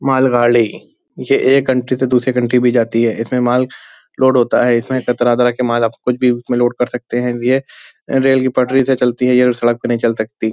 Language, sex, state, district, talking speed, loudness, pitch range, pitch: Hindi, male, Uttar Pradesh, Hamirpur, 230 wpm, -15 LUFS, 120-130 Hz, 125 Hz